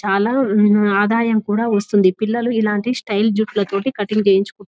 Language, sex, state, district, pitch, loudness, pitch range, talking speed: Telugu, female, Telangana, Nalgonda, 210 Hz, -17 LUFS, 205-220 Hz, 165 wpm